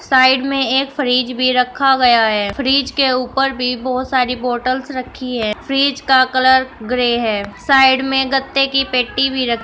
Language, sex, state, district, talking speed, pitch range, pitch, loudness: Hindi, female, Uttar Pradesh, Shamli, 185 wpm, 250-270 Hz, 255 Hz, -15 LUFS